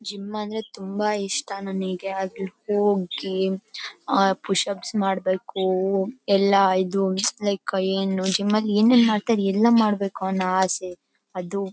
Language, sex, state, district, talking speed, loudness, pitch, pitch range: Kannada, female, Karnataka, Bellary, 120 wpm, -23 LUFS, 195 Hz, 190-205 Hz